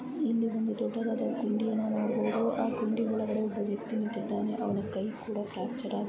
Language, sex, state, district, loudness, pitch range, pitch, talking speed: Kannada, female, Karnataka, Bijapur, -32 LUFS, 215-230 Hz, 225 Hz, 160 wpm